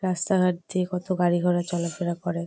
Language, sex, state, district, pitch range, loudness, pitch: Bengali, female, West Bengal, Jalpaiguri, 175-185 Hz, -25 LUFS, 180 Hz